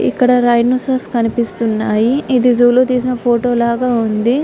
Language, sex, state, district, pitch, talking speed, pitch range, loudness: Telugu, female, Andhra Pradesh, Guntur, 245 Hz, 135 wpm, 235-250 Hz, -14 LUFS